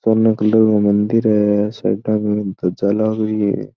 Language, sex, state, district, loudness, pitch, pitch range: Marwari, male, Rajasthan, Churu, -16 LUFS, 105 Hz, 100-110 Hz